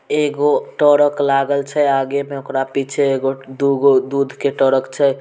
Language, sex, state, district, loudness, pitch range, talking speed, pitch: Maithili, male, Bihar, Samastipur, -17 LUFS, 135-140 Hz, 150 wpm, 140 Hz